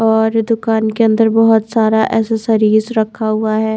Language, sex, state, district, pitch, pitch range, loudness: Hindi, female, Haryana, Charkhi Dadri, 220 Hz, 220-225 Hz, -14 LUFS